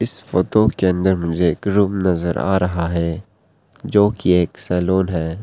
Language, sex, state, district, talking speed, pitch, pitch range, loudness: Hindi, male, Arunachal Pradesh, Papum Pare, 175 wpm, 90 Hz, 85-100 Hz, -18 LUFS